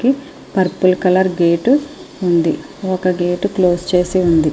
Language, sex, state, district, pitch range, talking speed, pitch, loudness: Telugu, female, Andhra Pradesh, Srikakulam, 175-200 Hz, 120 wpm, 185 Hz, -16 LUFS